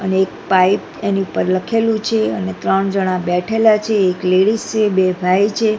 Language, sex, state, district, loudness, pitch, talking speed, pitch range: Gujarati, female, Gujarat, Gandhinagar, -16 LUFS, 195 Hz, 185 wpm, 185-215 Hz